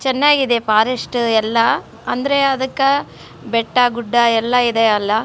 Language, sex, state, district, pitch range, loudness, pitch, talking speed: Kannada, female, Karnataka, Raichur, 225-265 Hz, -16 LUFS, 240 Hz, 125 wpm